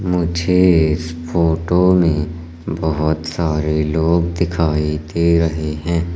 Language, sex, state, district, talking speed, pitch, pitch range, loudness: Hindi, male, Madhya Pradesh, Katni, 105 wpm, 80 Hz, 80-85 Hz, -17 LUFS